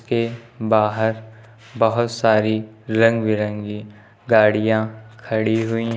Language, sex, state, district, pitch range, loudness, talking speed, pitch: Hindi, male, Uttar Pradesh, Lucknow, 110-115 Hz, -19 LUFS, 100 wpm, 110 Hz